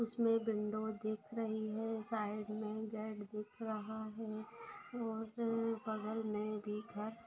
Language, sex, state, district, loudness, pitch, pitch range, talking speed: Hindi, female, Maharashtra, Aurangabad, -41 LUFS, 220 Hz, 215-225 Hz, 140 wpm